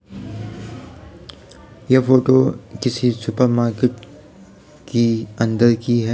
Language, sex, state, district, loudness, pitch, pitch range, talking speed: Hindi, male, Uttar Pradesh, Varanasi, -18 LUFS, 120 Hz, 115-130 Hz, 125 wpm